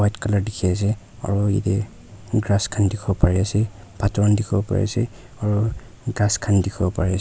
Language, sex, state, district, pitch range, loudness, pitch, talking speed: Nagamese, male, Nagaland, Kohima, 100-105 Hz, -22 LUFS, 100 Hz, 175 wpm